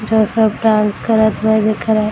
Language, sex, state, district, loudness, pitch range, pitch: Hindi, female, Bihar, Darbhanga, -14 LUFS, 215-220 Hz, 220 Hz